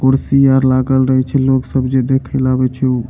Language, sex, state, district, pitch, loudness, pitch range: Maithili, male, Bihar, Supaul, 130 Hz, -14 LUFS, 130-135 Hz